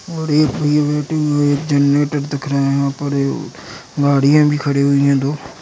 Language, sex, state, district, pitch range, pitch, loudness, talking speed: Hindi, female, Uttar Pradesh, Jalaun, 140-150 Hz, 145 Hz, -16 LUFS, 180 wpm